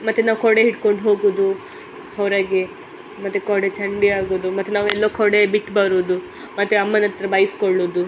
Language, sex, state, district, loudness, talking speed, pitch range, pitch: Kannada, female, Karnataka, Dakshina Kannada, -18 LUFS, 155 wpm, 195-215 Hz, 205 Hz